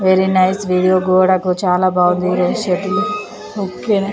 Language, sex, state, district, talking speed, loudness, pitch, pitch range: Telugu, female, Andhra Pradesh, Chittoor, 145 wpm, -15 LUFS, 185 Hz, 180-200 Hz